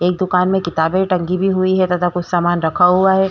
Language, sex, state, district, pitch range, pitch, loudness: Hindi, female, Chhattisgarh, Korba, 175-185 Hz, 180 Hz, -16 LUFS